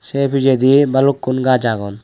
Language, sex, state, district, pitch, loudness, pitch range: Chakma, male, Tripura, West Tripura, 130 Hz, -15 LUFS, 125-135 Hz